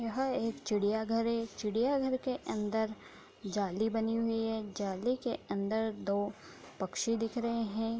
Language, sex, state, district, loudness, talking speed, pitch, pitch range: Hindi, female, Bihar, Darbhanga, -34 LUFS, 155 wpm, 225 Hz, 210-230 Hz